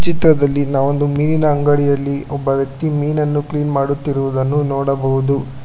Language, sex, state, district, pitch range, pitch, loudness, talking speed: Kannada, male, Karnataka, Bangalore, 135-145 Hz, 145 Hz, -17 LUFS, 115 wpm